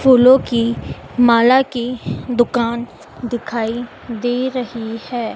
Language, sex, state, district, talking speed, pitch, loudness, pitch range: Hindi, female, Madhya Pradesh, Dhar, 100 wpm, 240 Hz, -17 LUFS, 235-250 Hz